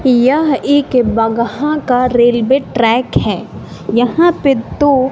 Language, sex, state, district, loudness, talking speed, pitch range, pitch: Hindi, female, Bihar, West Champaran, -13 LUFS, 115 wpm, 240-285 Hz, 255 Hz